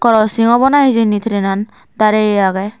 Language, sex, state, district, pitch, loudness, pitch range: Chakma, female, Tripura, Dhalai, 215 Hz, -13 LUFS, 205-230 Hz